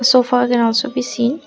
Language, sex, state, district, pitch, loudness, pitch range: English, female, Assam, Kamrup Metropolitan, 245 Hz, -16 LUFS, 240-255 Hz